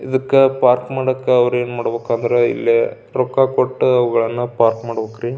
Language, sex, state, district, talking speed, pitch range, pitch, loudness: Kannada, male, Karnataka, Belgaum, 145 wpm, 120-130 Hz, 125 Hz, -17 LUFS